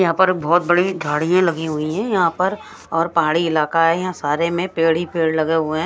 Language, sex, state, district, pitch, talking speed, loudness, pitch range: Hindi, female, Odisha, Sambalpur, 165 Hz, 235 wpm, -18 LUFS, 160-175 Hz